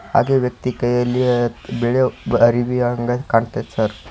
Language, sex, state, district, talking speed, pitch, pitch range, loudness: Kannada, male, Karnataka, Koppal, 115 wpm, 120 Hz, 115-125 Hz, -18 LUFS